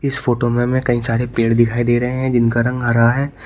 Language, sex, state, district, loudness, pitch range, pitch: Hindi, male, Uttar Pradesh, Shamli, -16 LUFS, 120-125 Hz, 120 Hz